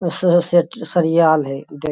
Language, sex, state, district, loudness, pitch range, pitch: Magahi, male, Bihar, Lakhisarai, -17 LUFS, 150-175 Hz, 165 Hz